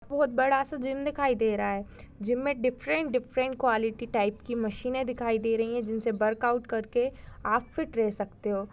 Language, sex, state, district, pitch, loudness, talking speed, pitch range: Hindi, female, Goa, North and South Goa, 240 Hz, -29 LUFS, 200 wpm, 220-260 Hz